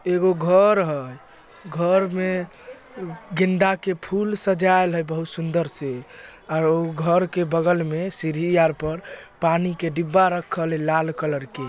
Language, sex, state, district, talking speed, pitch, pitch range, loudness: Magahi, male, Bihar, Samastipur, 145 wpm, 170 Hz, 160-185 Hz, -22 LUFS